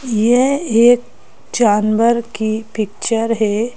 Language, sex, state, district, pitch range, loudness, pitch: Hindi, female, Madhya Pradesh, Bhopal, 220-240 Hz, -15 LUFS, 230 Hz